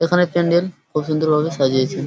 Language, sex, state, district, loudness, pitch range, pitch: Bengali, male, West Bengal, Paschim Medinipur, -18 LUFS, 150-170 Hz, 155 Hz